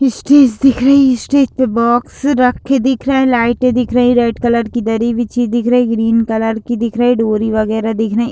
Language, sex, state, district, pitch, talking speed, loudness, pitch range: Hindi, female, Uttar Pradesh, Deoria, 240 Hz, 200 wpm, -13 LUFS, 230-255 Hz